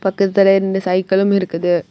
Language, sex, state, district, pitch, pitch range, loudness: Tamil, female, Tamil Nadu, Kanyakumari, 190 Hz, 185-195 Hz, -15 LUFS